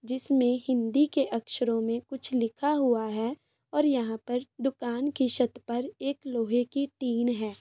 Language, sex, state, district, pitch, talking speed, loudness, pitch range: Hindi, female, Jharkhand, Sahebganj, 250 Hz, 160 wpm, -29 LUFS, 235-270 Hz